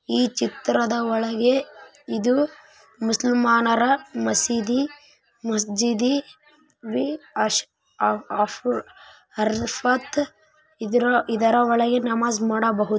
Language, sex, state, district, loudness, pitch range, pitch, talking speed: Kannada, female, Karnataka, Raichur, -22 LUFS, 225-270 Hz, 235 Hz, 65 wpm